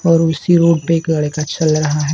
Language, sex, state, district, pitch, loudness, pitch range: Hindi, male, Maharashtra, Gondia, 160 Hz, -15 LUFS, 150-165 Hz